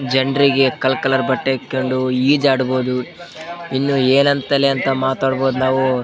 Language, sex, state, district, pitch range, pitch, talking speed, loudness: Kannada, male, Karnataka, Bellary, 130-140 Hz, 135 Hz, 110 wpm, -17 LUFS